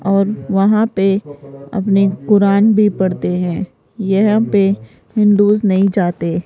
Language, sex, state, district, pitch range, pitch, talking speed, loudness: Hindi, female, Rajasthan, Jaipur, 185-205 Hz, 195 Hz, 130 wpm, -15 LUFS